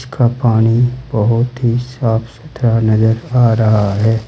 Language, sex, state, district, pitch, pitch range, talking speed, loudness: Hindi, male, Uttar Pradesh, Saharanpur, 115 Hz, 110-125 Hz, 140 wpm, -14 LUFS